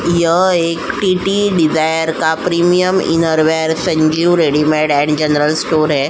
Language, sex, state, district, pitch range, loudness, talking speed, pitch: Hindi, female, Uttar Pradesh, Jyotiba Phule Nagar, 155-175 Hz, -13 LUFS, 140 wpm, 160 Hz